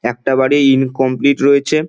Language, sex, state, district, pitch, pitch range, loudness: Bengali, male, West Bengal, Dakshin Dinajpur, 135 Hz, 130-140 Hz, -13 LUFS